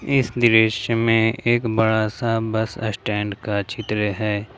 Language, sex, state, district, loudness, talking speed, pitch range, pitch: Hindi, male, Jharkhand, Ranchi, -20 LUFS, 145 wpm, 105-115 Hz, 110 Hz